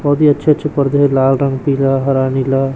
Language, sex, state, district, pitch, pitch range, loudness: Hindi, male, Chhattisgarh, Raipur, 135 Hz, 135-145 Hz, -14 LUFS